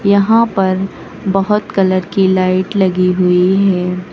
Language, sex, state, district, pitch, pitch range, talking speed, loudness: Hindi, female, Uttar Pradesh, Lucknow, 190 Hz, 185-200 Hz, 130 wpm, -13 LUFS